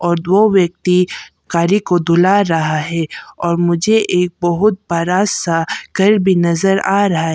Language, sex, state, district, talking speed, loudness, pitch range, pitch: Hindi, female, Arunachal Pradesh, Papum Pare, 165 wpm, -14 LUFS, 170-195 Hz, 180 Hz